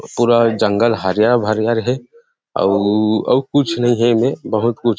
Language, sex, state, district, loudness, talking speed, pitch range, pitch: Chhattisgarhi, male, Chhattisgarh, Rajnandgaon, -16 LUFS, 170 wpm, 110-120 Hz, 115 Hz